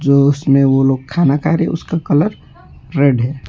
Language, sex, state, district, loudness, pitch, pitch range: Hindi, male, West Bengal, Alipurduar, -14 LUFS, 140 Hz, 135-155 Hz